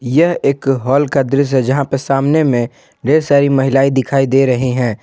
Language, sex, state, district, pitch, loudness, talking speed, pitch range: Hindi, male, Jharkhand, Ranchi, 135 Hz, -14 LUFS, 205 wpm, 130-140 Hz